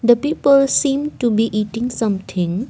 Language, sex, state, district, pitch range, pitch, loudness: English, female, Assam, Kamrup Metropolitan, 210-275 Hz, 240 Hz, -17 LUFS